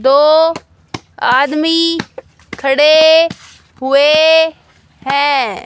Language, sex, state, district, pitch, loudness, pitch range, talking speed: Hindi, female, Haryana, Jhajjar, 310 Hz, -11 LUFS, 275-325 Hz, 55 wpm